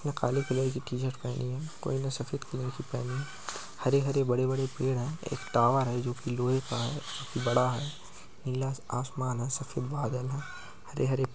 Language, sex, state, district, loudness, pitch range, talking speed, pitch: Hindi, male, West Bengal, Jalpaiguri, -32 LUFS, 125-140 Hz, 190 wpm, 130 Hz